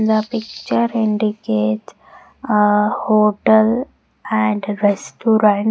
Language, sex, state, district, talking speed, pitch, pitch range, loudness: English, female, Punjab, Pathankot, 75 wpm, 210 Hz, 205-220 Hz, -17 LUFS